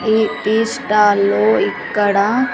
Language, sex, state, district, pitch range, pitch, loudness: Telugu, female, Andhra Pradesh, Sri Satya Sai, 200-220 Hz, 210 Hz, -15 LUFS